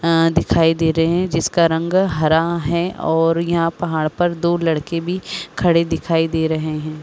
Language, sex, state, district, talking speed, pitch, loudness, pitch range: Hindi, female, Chhattisgarh, Rajnandgaon, 180 wpm, 165 Hz, -18 LUFS, 160-170 Hz